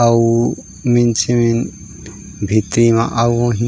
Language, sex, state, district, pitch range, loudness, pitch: Chhattisgarhi, male, Chhattisgarh, Raigarh, 115-120 Hz, -15 LUFS, 115 Hz